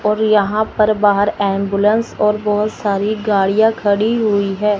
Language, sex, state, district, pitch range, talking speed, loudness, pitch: Hindi, male, Chandigarh, Chandigarh, 200-215 Hz, 150 wpm, -15 LUFS, 210 Hz